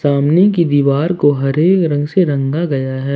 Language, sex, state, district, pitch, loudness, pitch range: Hindi, male, Jharkhand, Ranchi, 145 Hz, -14 LUFS, 140-170 Hz